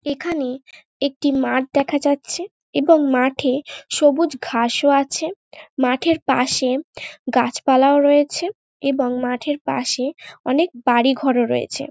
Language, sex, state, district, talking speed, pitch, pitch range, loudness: Bengali, female, West Bengal, North 24 Parganas, 115 wpm, 275 Hz, 255-295 Hz, -19 LUFS